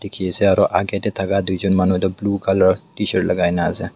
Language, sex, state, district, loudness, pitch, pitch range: Nagamese, male, Nagaland, Dimapur, -18 LUFS, 95 Hz, 95-100 Hz